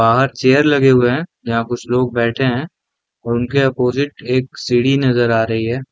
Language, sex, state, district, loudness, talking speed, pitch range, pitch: Hindi, male, Jharkhand, Jamtara, -16 LUFS, 205 wpm, 120-135 Hz, 125 Hz